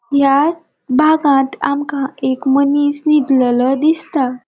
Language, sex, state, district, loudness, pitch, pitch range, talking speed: Konkani, female, Goa, North and South Goa, -14 LUFS, 280 Hz, 265-300 Hz, 95 wpm